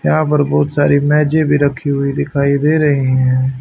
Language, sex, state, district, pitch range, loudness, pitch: Hindi, male, Haryana, Rohtak, 140-150 Hz, -14 LUFS, 145 Hz